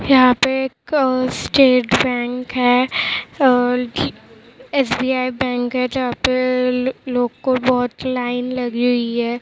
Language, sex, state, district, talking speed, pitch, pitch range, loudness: Hindi, female, Maharashtra, Mumbai Suburban, 120 wpm, 250 Hz, 245-260 Hz, -18 LUFS